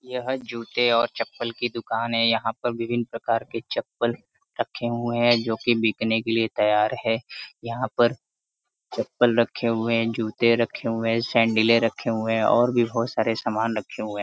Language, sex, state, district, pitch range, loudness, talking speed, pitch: Hindi, male, Uttar Pradesh, Varanasi, 115-120 Hz, -24 LUFS, 190 wpm, 115 Hz